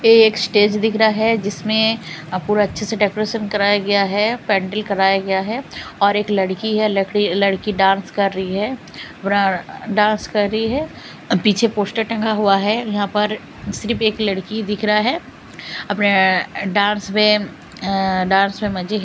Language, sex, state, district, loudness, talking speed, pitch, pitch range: Hindi, female, Delhi, New Delhi, -18 LUFS, 170 wpm, 205 Hz, 195-215 Hz